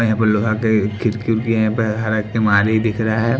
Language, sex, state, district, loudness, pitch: Hindi, male, Haryana, Jhajjar, -17 LUFS, 110 Hz